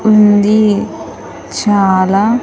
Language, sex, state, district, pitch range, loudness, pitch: Telugu, female, Andhra Pradesh, Sri Satya Sai, 200-215 Hz, -11 LUFS, 210 Hz